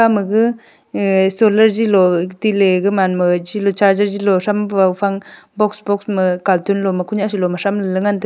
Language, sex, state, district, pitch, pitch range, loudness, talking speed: Wancho, female, Arunachal Pradesh, Longding, 200 Hz, 190-210 Hz, -15 LUFS, 230 wpm